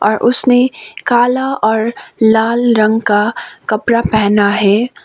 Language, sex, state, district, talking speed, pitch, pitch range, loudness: Hindi, female, Sikkim, Gangtok, 120 wpm, 225 Hz, 215-240 Hz, -13 LUFS